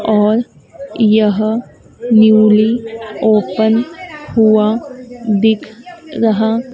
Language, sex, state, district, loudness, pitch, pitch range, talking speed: Hindi, female, Madhya Pradesh, Dhar, -13 LUFS, 220 Hz, 215-240 Hz, 60 wpm